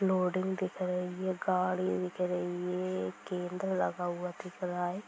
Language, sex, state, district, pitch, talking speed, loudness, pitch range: Hindi, female, Bihar, Sitamarhi, 180 Hz, 165 wpm, -34 LUFS, 180-185 Hz